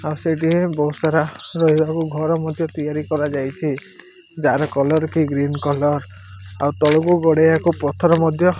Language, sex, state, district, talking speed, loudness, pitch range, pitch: Odia, male, Odisha, Malkangiri, 140 wpm, -19 LUFS, 145-165 Hz, 155 Hz